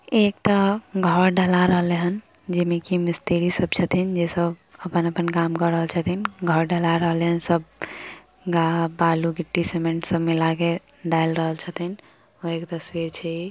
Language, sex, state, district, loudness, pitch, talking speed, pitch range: Maithili, female, Bihar, Samastipur, -22 LUFS, 170 Hz, 140 wpm, 165-180 Hz